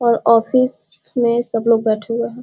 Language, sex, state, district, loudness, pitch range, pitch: Hindi, female, Bihar, Muzaffarpur, -17 LUFS, 230-240 Hz, 235 Hz